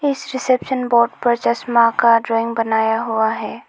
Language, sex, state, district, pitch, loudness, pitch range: Hindi, female, Arunachal Pradesh, Lower Dibang Valley, 235 Hz, -17 LUFS, 225-250 Hz